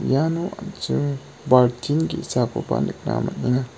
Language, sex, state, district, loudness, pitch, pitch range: Garo, male, Meghalaya, West Garo Hills, -22 LUFS, 145 Hz, 125-160 Hz